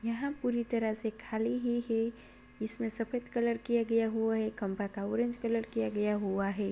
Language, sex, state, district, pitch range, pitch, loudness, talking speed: Hindi, female, Bihar, Lakhisarai, 215-235 Hz, 225 Hz, -33 LUFS, 195 wpm